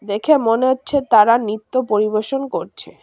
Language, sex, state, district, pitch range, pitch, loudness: Bengali, female, West Bengal, Cooch Behar, 215-265 Hz, 230 Hz, -17 LUFS